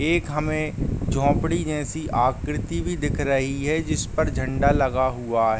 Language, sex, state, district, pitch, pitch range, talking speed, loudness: Hindi, male, Uttar Pradesh, Deoria, 140 Hz, 130-155 Hz, 150 wpm, -24 LUFS